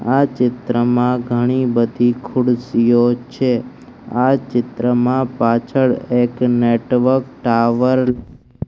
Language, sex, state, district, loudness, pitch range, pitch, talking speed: Gujarati, male, Gujarat, Gandhinagar, -16 LUFS, 120-130 Hz, 125 Hz, 90 wpm